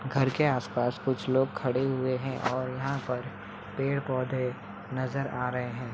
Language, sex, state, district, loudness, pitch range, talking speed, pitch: Hindi, female, Bihar, Saharsa, -30 LUFS, 125-135 Hz, 170 wpm, 130 Hz